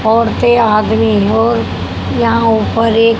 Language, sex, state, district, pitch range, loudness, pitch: Hindi, female, Haryana, Jhajjar, 220-230 Hz, -12 LUFS, 225 Hz